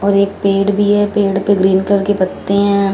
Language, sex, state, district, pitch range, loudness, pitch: Hindi, female, Punjab, Fazilka, 195-200 Hz, -14 LUFS, 200 Hz